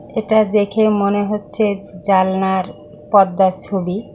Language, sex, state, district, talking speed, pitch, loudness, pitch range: Bengali, female, West Bengal, Kolkata, 100 wpm, 200 Hz, -16 LUFS, 190-210 Hz